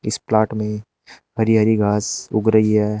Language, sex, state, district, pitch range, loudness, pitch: Hindi, male, Uttar Pradesh, Shamli, 105-110 Hz, -18 LUFS, 110 Hz